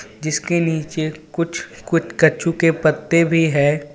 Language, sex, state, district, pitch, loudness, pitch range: Hindi, male, Jharkhand, Ranchi, 160 Hz, -18 LUFS, 155-165 Hz